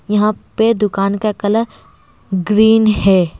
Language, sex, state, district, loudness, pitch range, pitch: Hindi, female, Bihar, Kishanganj, -14 LUFS, 195-220 Hz, 210 Hz